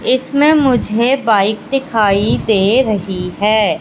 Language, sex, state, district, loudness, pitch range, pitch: Hindi, female, Madhya Pradesh, Katni, -14 LUFS, 205-260 Hz, 220 Hz